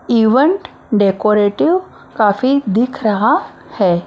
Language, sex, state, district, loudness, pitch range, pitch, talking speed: Hindi, female, Maharashtra, Mumbai Suburban, -15 LUFS, 205-275 Hz, 220 Hz, 90 wpm